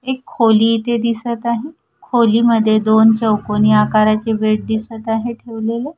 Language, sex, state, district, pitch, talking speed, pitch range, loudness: Marathi, female, Maharashtra, Washim, 225 Hz, 130 wpm, 215-235 Hz, -15 LUFS